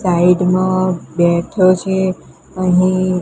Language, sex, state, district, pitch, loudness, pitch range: Gujarati, female, Gujarat, Gandhinagar, 185 Hz, -15 LUFS, 180-185 Hz